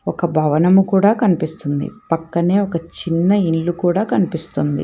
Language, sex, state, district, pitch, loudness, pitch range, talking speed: Telugu, female, Telangana, Hyderabad, 175 Hz, -17 LUFS, 165-195 Hz, 125 wpm